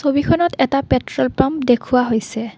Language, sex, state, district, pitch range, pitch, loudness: Assamese, female, Assam, Kamrup Metropolitan, 225-280 Hz, 250 Hz, -17 LUFS